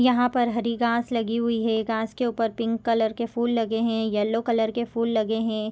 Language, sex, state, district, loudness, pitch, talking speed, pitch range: Hindi, female, Chhattisgarh, Korba, -25 LUFS, 230 Hz, 230 wpm, 225-235 Hz